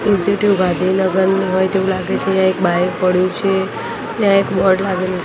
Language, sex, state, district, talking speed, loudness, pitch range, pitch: Gujarati, female, Gujarat, Gandhinagar, 160 wpm, -16 LUFS, 185-195 Hz, 190 Hz